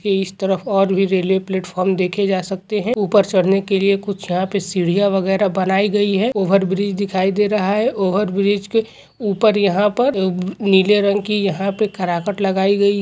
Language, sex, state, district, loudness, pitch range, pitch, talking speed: Hindi, male, Rajasthan, Churu, -17 LUFS, 190-205 Hz, 195 Hz, 190 wpm